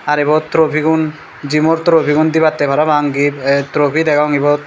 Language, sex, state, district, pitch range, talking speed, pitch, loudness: Chakma, male, Tripura, Dhalai, 145-155 Hz, 180 wpm, 150 Hz, -13 LUFS